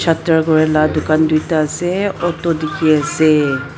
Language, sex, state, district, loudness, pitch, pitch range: Nagamese, female, Nagaland, Dimapur, -15 LUFS, 155 Hz, 155-165 Hz